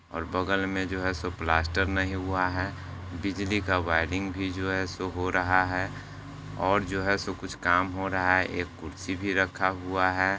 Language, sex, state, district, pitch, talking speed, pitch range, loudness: Hindi, male, Bihar, Sitamarhi, 95 Hz, 200 wpm, 90-95 Hz, -28 LUFS